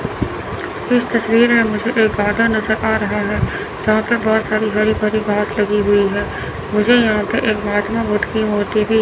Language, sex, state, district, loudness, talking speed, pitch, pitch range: Hindi, male, Chandigarh, Chandigarh, -17 LUFS, 205 wpm, 215 Hz, 210-225 Hz